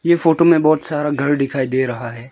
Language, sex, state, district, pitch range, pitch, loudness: Hindi, male, Arunachal Pradesh, Lower Dibang Valley, 130-160 Hz, 145 Hz, -16 LUFS